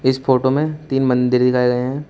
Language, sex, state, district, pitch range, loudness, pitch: Hindi, male, Uttar Pradesh, Shamli, 125-135 Hz, -17 LUFS, 130 Hz